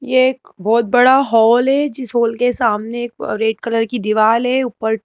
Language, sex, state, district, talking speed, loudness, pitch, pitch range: Hindi, female, Madhya Pradesh, Bhopal, 200 wpm, -15 LUFS, 235 Hz, 225-255 Hz